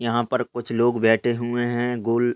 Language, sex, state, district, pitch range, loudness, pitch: Hindi, male, Uttar Pradesh, Gorakhpur, 115-120 Hz, -22 LUFS, 120 Hz